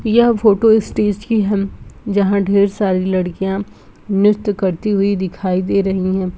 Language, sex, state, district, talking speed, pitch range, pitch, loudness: Hindi, female, Bihar, Gopalganj, 150 wpm, 190-210 Hz, 200 Hz, -16 LUFS